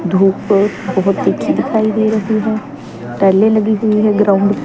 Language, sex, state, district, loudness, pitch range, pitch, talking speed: Hindi, female, Chandigarh, Chandigarh, -14 LUFS, 195-220 Hz, 210 Hz, 170 wpm